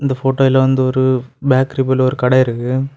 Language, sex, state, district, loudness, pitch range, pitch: Tamil, male, Tamil Nadu, Kanyakumari, -15 LUFS, 130-135 Hz, 130 Hz